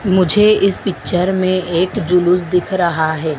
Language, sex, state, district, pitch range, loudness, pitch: Hindi, female, Madhya Pradesh, Dhar, 175-190 Hz, -15 LUFS, 180 Hz